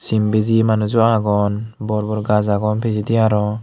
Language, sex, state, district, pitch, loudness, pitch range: Chakma, male, Tripura, Unakoti, 105 Hz, -17 LUFS, 105-110 Hz